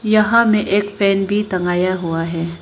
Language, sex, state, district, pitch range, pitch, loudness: Hindi, female, Arunachal Pradesh, Lower Dibang Valley, 175-210 Hz, 195 Hz, -17 LUFS